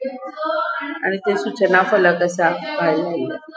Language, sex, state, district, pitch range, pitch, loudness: Konkani, female, Goa, North and South Goa, 185-315 Hz, 210 Hz, -19 LUFS